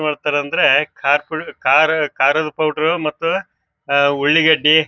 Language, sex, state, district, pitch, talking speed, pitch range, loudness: Kannada, male, Karnataka, Bijapur, 150 Hz, 125 wpm, 145-155 Hz, -16 LUFS